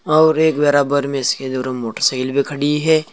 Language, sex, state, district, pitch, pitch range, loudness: Hindi, male, Uttar Pradesh, Saharanpur, 145 Hz, 130-155 Hz, -17 LUFS